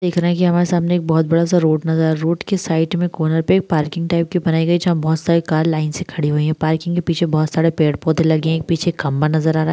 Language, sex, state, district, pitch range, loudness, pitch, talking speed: Hindi, female, Bihar, Vaishali, 160-175 Hz, -17 LUFS, 165 Hz, 295 wpm